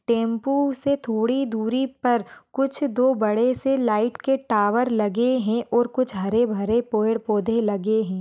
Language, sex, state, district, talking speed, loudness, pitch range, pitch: Hindi, female, Rajasthan, Churu, 160 wpm, -22 LUFS, 220-260 Hz, 235 Hz